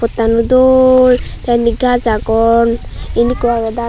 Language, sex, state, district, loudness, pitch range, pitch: Chakma, female, Tripura, Unakoti, -12 LUFS, 230-250 Hz, 235 Hz